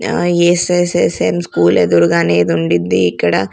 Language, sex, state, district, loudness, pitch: Telugu, female, Andhra Pradesh, Sri Satya Sai, -13 LUFS, 90 Hz